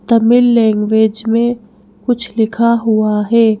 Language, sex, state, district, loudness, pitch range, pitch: Hindi, female, Madhya Pradesh, Bhopal, -13 LUFS, 215-235 Hz, 225 Hz